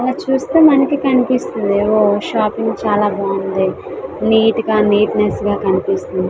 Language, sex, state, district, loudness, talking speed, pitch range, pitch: Telugu, female, Andhra Pradesh, Visakhapatnam, -15 LUFS, 125 wpm, 205-255 Hz, 215 Hz